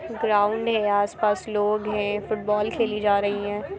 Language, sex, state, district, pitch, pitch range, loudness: Hindi, female, Bihar, Muzaffarpur, 210 Hz, 205-215 Hz, -24 LUFS